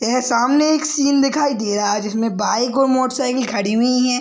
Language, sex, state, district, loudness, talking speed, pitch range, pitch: Hindi, male, Bihar, Madhepura, -17 LUFS, 215 wpm, 225-275 Hz, 250 Hz